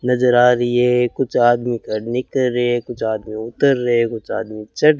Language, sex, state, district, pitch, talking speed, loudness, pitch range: Hindi, male, Rajasthan, Bikaner, 120 Hz, 215 wpm, -18 LUFS, 115-125 Hz